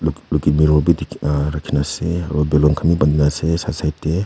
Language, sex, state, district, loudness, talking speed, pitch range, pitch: Nagamese, male, Nagaland, Kohima, -18 LUFS, 255 wpm, 75-80 Hz, 75 Hz